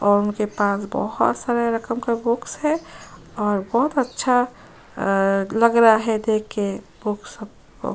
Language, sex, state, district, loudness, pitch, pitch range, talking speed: Hindi, female, Uttar Pradesh, Jyotiba Phule Nagar, -21 LUFS, 220 Hz, 205-235 Hz, 145 wpm